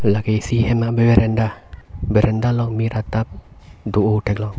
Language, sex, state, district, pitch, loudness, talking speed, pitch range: Karbi, male, Assam, Karbi Anglong, 110 Hz, -18 LUFS, 155 wpm, 100-115 Hz